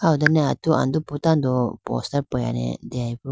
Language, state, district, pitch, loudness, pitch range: Idu Mishmi, Arunachal Pradesh, Lower Dibang Valley, 140 Hz, -22 LUFS, 120-155 Hz